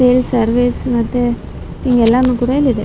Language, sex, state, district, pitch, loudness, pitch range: Kannada, female, Karnataka, Raichur, 245 Hz, -14 LUFS, 235-250 Hz